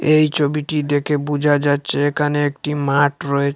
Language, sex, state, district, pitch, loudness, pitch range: Bengali, male, Assam, Hailakandi, 145 Hz, -18 LUFS, 145-150 Hz